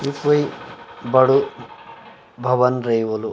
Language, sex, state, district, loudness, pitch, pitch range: Garhwali, male, Uttarakhand, Uttarkashi, -19 LUFS, 125 Hz, 120-140 Hz